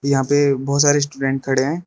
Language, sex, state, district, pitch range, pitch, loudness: Hindi, male, Arunachal Pradesh, Lower Dibang Valley, 135-145 Hz, 140 Hz, -18 LUFS